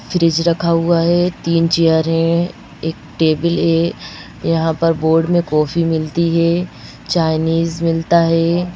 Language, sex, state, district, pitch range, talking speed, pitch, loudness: Hindi, female, Madhya Pradesh, Bhopal, 165-170 Hz, 135 wpm, 165 Hz, -16 LUFS